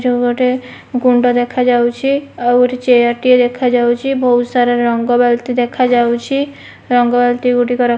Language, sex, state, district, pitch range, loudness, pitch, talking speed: Odia, female, Odisha, Malkangiri, 245-250 Hz, -13 LUFS, 245 Hz, 150 wpm